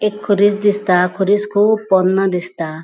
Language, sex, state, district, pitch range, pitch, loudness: Konkani, female, Goa, North and South Goa, 185-205 Hz, 200 Hz, -15 LUFS